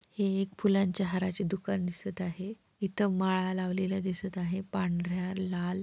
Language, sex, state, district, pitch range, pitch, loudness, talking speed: Marathi, female, Maharashtra, Pune, 185-195 Hz, 190 Hz, -32 LUFS, 145 wpm